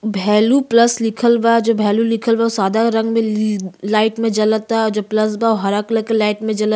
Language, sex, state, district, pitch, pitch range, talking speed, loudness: Bhojpuri, female, Uttar Pradesh, Ghazipur, 220 Hz, 215-230 Hz, 220 wpm, -16 LUFS